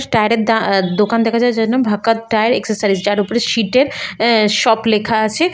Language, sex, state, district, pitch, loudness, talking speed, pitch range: Bengali, female, West Bengal, Malda, 225 Hz, -15 LUFS, 195 wpm, 210-235 Hz